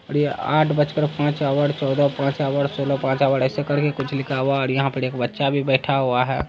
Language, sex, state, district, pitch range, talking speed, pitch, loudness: Hindi, male, Bihar, Saharsa, 135-145 Hz, 260 wpm, 140 Hz, -21 LUFS